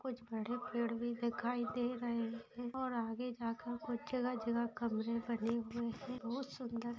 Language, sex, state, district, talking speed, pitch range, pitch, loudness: Hindi, female, Bihar, Lakhisarai, 170 wpm, 230-245 Hz, 235 Hz, -40 LUFS